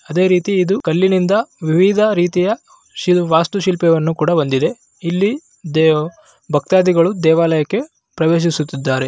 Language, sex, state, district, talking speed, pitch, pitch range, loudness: Kannada, male, Karnataka, Raichur, 100 wpm, 175 Hz, 160-195 Hz, -15 LUFS